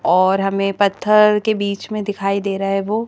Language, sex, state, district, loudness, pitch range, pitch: Hindi, female, Madhya Pradesh, Bhopal, -17 LUFS, 195-210 Hz, 200 Hz